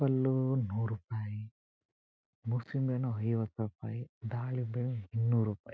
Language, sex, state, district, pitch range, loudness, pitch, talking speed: Kannada, male, Karnataka, Chamarajanagar, 110-125 Hz, -35 LUFS, 115 Hz, 105 wpm